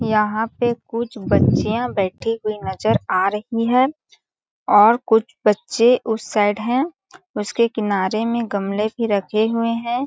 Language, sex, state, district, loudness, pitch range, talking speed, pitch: Hindi, female, Chhattisgarh, Balrampur, -19 LUFS, 210-235 Hz, 150 wpm, 225 Hz